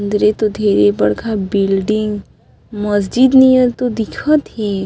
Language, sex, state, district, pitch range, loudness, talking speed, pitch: Chhattisgarhi, female, Chhattisgarh, Sarguja, 200-240 Hz, -14 LUFS, 125 wpm, 210 Hz